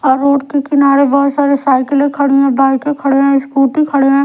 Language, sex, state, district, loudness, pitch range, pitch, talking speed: Hindi, female, Odisha, Sambalpur, -12 LUFS, 275-280 Hz, 280 Hz, 210 wpm